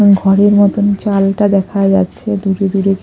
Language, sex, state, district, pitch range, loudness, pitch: Bengali, female, Odisha, Khordha, 195-205 Hz, -12 LUFS, 195 Hz